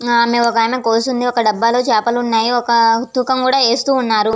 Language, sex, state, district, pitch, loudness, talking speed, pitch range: Telugu, female, Andhra Pradesh, Visakhapatnam, 235 Hz, -14 LUFS, 205 wpm, 230-250 Hz